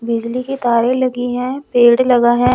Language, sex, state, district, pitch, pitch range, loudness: Hindi, female, Chandigarh, Chandigarh, 245 Hz, 240-255 Hz, -15 LUFS